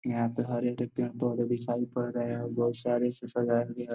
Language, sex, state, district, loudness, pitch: Hindi, male, Bihar, Gopalganj, -31 LUFS, 120 Hz